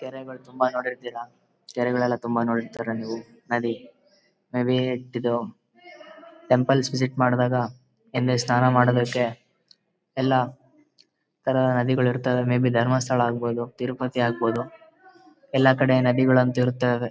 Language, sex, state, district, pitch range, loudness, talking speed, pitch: Kannada, male, Karnataka, Bellary, 120-130 Hz, -23 LUFS, 115 wpm, 125 Hz